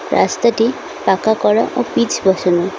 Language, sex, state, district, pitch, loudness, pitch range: Bengali, female, West Bengal, Cooch Behar, 220 Hz, -16 LUFS, 190-235 Hz